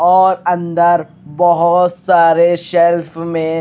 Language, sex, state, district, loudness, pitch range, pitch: Hindi, male, Haryana, Rohtak, -13 LUFS, 165-175 Hz, 170 Hz